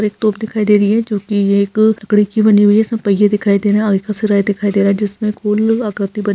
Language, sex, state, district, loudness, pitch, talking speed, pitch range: Hindi, female, Maharashtra, Pune, -14 LUFS, 210 Hz, 300 wpm, 205-215 Hz